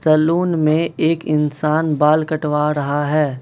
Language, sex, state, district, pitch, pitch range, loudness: Hindi, male, Manipur, Imphal West, 155 Hz, 150-160 Hz, -17 LUFS